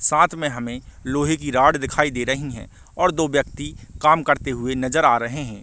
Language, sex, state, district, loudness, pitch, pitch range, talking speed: Hindi, male, Chhattisgarh, Bastar, -20 LUFS, 140 Hz, 125-150 Hz, 215 wpm